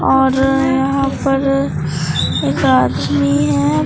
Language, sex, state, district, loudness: Hindi, male, Bihar, Katihar, -15 LUFS